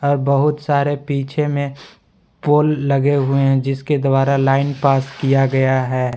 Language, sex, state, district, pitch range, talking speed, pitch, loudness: Hindi, male, Jharkhand, Palamu, 135-145 Hz, 145 wpm, 140 Hz, -17 LUFS